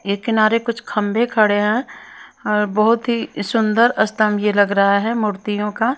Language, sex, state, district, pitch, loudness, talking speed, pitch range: Hindi, female, Himachal Pradesh, Shimla, 215 Hz, -17 LUFS, 170 wpm, 210-230 Hz